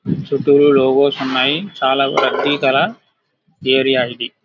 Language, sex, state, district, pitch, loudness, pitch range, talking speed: Telugu, male, Andhra Pradesh, Krishna, 135 Hz, -15 LUFS, 130-145 Hz, 110 wpm